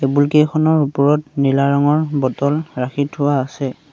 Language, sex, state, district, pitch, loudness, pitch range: Assamese, male, Assam, Sonitpur, 145 Hz, -17 LUFS, 135-150 Hz